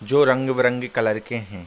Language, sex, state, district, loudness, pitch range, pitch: Hindi, male, Bihar, Gopalganj, -21 LUFS, 110-130 Hz, 125 Hz